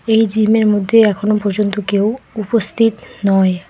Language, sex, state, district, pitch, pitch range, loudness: Bengali, female, West Bengal, Alipurduar, 215 Hz, 200-220 Hz, -15 LUFS